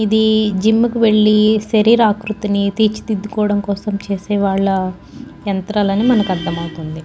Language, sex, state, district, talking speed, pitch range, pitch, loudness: Telugu, female, Andhra Pradesh, Guntur, 110 wpm, 195-215 Hz, 210 Hz, -16 LUFS